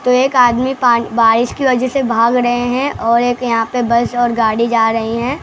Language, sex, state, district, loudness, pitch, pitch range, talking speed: Hindi, male, Maharashtra, Mumbai Suburban, -14 LUFS, 240 Hz, 230-250 Hz, 230 wpm